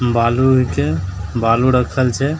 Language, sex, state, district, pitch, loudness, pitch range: Maithili, male, Bihar, Begusarai, 125 Hz, -16 LUFS, 115-130 Hz